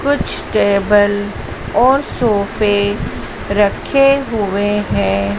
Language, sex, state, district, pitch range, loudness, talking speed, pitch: Hindi, female, Madhya Pradesh, Dhar, 200-230 Hz, -15 LUFS, 80 wpm, 205 Hz